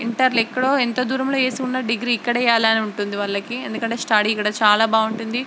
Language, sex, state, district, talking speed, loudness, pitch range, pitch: Telugu, female, Andhra Pradesh, Srikakulam, 175 wpm, -19 LUFS, 220-255 Hz, 230 Hz